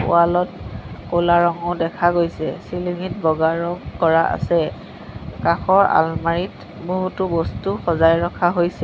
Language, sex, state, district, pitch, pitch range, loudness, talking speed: Assamese, female, Assam, Sonitpur, 175 Hz, 165-180 Hz, -19 LUFS, 120 wpm